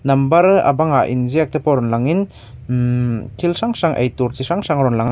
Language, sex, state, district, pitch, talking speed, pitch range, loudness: Mizo, male, Mizoram, Aizawl, 135 Hz, 225 wpm, 125-165 Hz, -17 LUFS